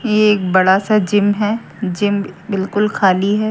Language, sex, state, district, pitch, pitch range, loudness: Hindi, female, Haryana, Jhajjar, 205 Hz, 190-210 Hz, -16 LUFS